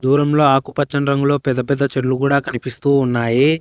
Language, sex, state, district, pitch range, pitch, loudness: Telugu, male, Telangana, Hyderabad, 130-140 Hz, 140 Hz, -17 LUFS